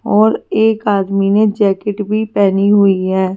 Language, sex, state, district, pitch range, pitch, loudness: Hindi, female, Delhi, New Delhi, 195-215 Hz, 205 Hz, -13 LUFS